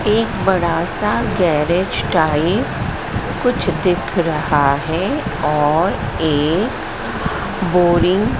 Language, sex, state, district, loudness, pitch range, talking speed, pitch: Hindi, female, Madhya Pradesh, Dhar, -17 LUFS, 155-190 Hz, 95 wpm, 175 Hz